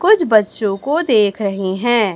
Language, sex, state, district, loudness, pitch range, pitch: Hindi, male, Chhattisgarh, Raipur, -16 LUFS, 200-265 Hz, 215 Hz